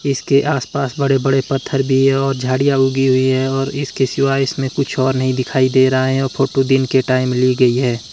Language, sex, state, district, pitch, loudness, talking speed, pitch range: Hindi, male, Himachal Pradesh, Shimla, 135 Hz, -16 LUFS, 235 wpm, 130-135 Hz